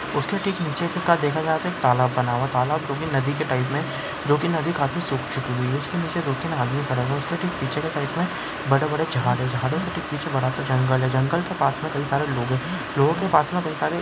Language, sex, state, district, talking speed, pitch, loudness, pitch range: Hindi, male, Bihar, Saran, 265 wpm, 145 Hz, -23 LUFS, 130-165 Hz